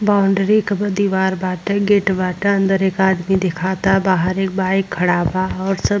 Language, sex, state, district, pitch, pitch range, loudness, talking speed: Bhojpuri, female, Uttar Pradesh, Ghazipur, 190 Hz, 185-200 Hz, -17 LUFS, 180 wpm